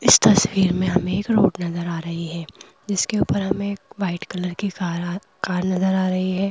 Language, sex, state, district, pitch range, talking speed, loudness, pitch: Hindi, female, Madhya Pradesh, Bhopal, 180-200 Hz, 200 wpm, -21 LUFS, 185 Hz